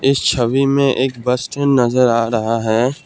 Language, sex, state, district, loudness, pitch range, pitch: Hindi, male, Assam, Kamrup Metropolitan, -16 LUFS, 115-135 Hz, 125 Hz